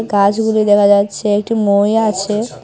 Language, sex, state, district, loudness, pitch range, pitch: Bengali, female, Tripura, Unakoti, -13 LUFS, 200-220 Hz, 210 Hz